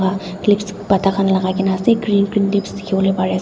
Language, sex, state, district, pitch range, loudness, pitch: Nagamese, female, Nagaland, Dimapur, 190-200 Hz, -17 LUFS, 195 Hz